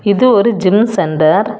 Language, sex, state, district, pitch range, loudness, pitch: Tamil, female, Tamil Nadu, Kanyakumari, 195-220 Hz, -12 LUFS, 205 Hz